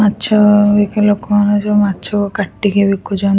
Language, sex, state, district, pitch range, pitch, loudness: Odia, female, Odisha, Khordha, 200-210 Hz, 205 Hz, -13 LUFS